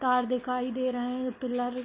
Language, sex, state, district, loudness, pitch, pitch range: Hindi, female, Uttar Pradesh, Hamirpur, -30 LUFS, 250 Hz, 245-255 Hz